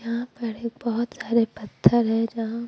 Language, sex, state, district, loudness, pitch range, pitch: Hindi, female, Bihar, Patna, -24 LUFS, 225-235 Hz, 230 Hz